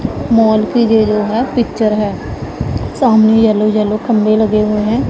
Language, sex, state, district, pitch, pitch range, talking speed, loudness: Hindi, female, Punjab, Pathankot, 220 Hz, 215-230 Hz, 165 wpm, -13 LUFS